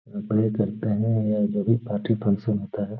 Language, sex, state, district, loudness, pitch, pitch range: Hindi, male, Bihar, Gaya, -24 LUFS, 105 Hz, 105-110 Hz